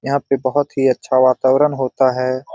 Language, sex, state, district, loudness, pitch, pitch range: Hindi, male, Bihar, Lakhisarai, -16 LUFS, 130 Hz, 130-140 Hz